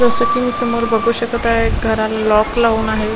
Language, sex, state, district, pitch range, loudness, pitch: Marathi, female, Maharashtra, Washim, 220-235 Hz, -15 LUFS, 230 Hz